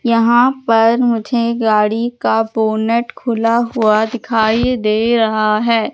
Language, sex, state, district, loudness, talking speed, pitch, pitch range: Hindi, female, Madhya Pradesh, Katni, -14 LUFS, 120 wpm, 230 Hz, 220-235 Hz